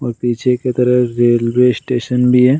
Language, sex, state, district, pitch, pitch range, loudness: Hindi, male, Bihar, Gaya, 125 Hz, 120-125 Hz, -14 LUFS